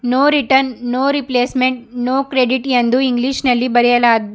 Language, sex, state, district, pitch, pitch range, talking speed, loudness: Kannada, male, Karnataka, Bidar, 255 Hz, 245-265 Hz, 140 wpm, -15 LUFS